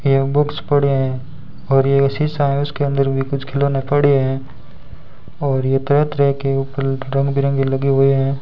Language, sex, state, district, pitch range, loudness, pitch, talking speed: Hindi, male, Rajasthan, Bikaner, 135-140 Hz, -17 LUFS, 135 Hz, 185 wpm